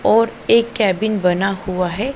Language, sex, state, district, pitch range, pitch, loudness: Hindi, female, Punjab, Pathankot, 185-230 Hz, 205 Hz, -17 LUFS